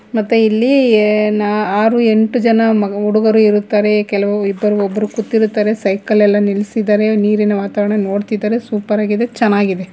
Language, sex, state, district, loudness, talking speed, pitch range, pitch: Kannada, female, Karnataka, Bangalore, -14 LUFS, 135 wpm, 205-220 Hz, 210 Hz